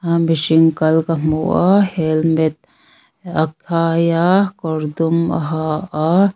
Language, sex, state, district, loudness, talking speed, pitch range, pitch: Mizo, female, Mizoram, Aizawl, -16 LUFS, 140 wpm, 160-170 Hz, 165 Hz